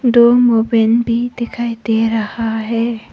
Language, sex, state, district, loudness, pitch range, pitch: Hindi, female, Arunachal Pradesh, Papum Pare, -15 LUFS, 225-235 Hz, 230 Hz